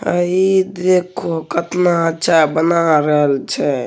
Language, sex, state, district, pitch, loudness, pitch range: Hindi, male, Bihar, Begusarai, 170 Hz, -15 LUFS, 160-180 Hz